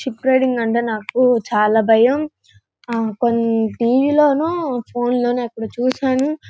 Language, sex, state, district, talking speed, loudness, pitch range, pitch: Telugu, female, Andhra Pradesh, Guntur, 130 wpm, -17 LUFS, 225-260 Hz, 240 Hz